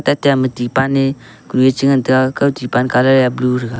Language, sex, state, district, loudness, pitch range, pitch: Wancho, male, Arunachal Pradesh, Longding, -15 LUFS, 125-135 Hz, 130 Hz